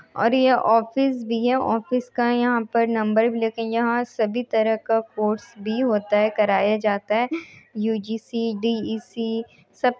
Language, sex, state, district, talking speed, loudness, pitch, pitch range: Hindi, female, Bihar, Muzaffarpur, 160 wpm, -22 LUFS, 225 Hz, 220-240 Hz